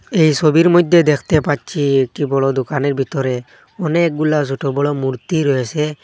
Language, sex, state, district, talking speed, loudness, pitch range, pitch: Bengali, male, Assam, Hailakandi, 140 wpm, -16 LUFS, 135-155 Hz, 145 Hz